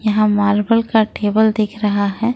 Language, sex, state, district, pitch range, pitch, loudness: Hindi, female, Jharkhand, Ranchi, 205-220 Hz, 215 Hz, -16 LUFS